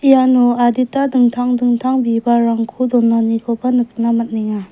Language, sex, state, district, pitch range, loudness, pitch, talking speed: Garo, female, Meghalaya, West Garo Hills, 230-255 Hz, -15 LUFS, 240 Hz, 100 wpm